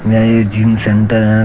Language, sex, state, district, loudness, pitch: Hindi, male, Jharkhand, Deoghar, -12 LUFS, 110 Hz